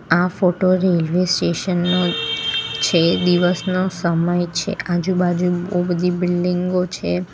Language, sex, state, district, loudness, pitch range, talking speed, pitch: Gujarati, female, Gujarat, Valsad, -19 LUFS, 175-180 Hz, 115 wpm, 180 Hz